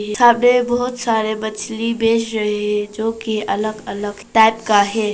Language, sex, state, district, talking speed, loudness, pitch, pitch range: Hindi, female, Arunachal Pradesh, Papum Pare, 165 wpm, -17 LUFS, 220 Hz, 210-230 Hz